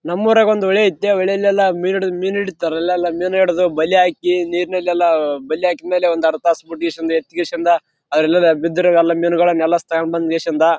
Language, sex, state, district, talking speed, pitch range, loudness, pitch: Kannada, male, Karnataka, Raichur, 135 wpm, 165-185 Hz, -16 LUFS, 175 Hz